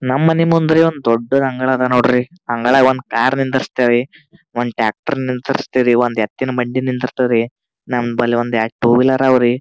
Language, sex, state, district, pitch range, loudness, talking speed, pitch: Kannada, male, Karnataka, Gulbarga, 120-130 Hz, -16 LUFS, 160 wpm, 125 Hz